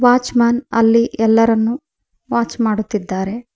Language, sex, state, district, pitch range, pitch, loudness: Kannada, female, Karnataka, Koppal, 220-240 Hz, 230 Hz, -16 LUFS